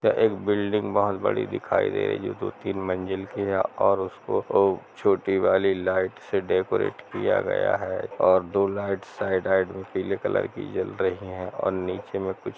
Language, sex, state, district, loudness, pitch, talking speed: Hindi, male, Jharkhand, Jamtara, -25 LUFS, 100 Hz, 170 wpm